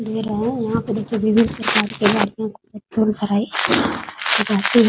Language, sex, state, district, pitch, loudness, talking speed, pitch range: Hindi, female, Bihar, Muzaffarpur, 215 Hz, -18 LUFS, 125 wpm, 210-225 Hz